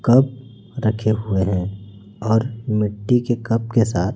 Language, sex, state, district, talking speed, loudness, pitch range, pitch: Hindi, male, Chhattisgarh, Raipur, 145 wpm, -20 LUFS, 100-120 Hz, 110 Hz